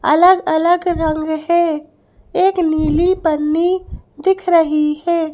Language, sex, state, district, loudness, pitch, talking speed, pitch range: Hindi, female, Madhya Pradesh, Bhopal, -16 LUFS, 330 Hz, 110 wpm, 310-355 Hz